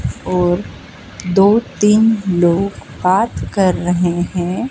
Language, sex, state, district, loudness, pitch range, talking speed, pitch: Hindi, female, Madhya Pradesh, Dhar, -15 LUFS, 175-205 Hz, 100 wpm, 185 Hz